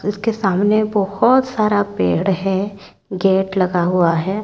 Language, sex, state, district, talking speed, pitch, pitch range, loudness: Hindi, female, Chhattisgarh, Raipur, 135 wpm, 195 Hz, 190-210 Hz, -17 LUFS